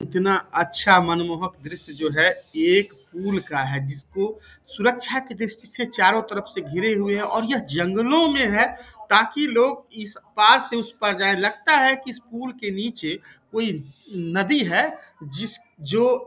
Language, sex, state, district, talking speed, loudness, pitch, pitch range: Hindi, male, Bihar, Samastipur, 175 wpm, -21 LUFS, 210 Hz, 185-240 Hz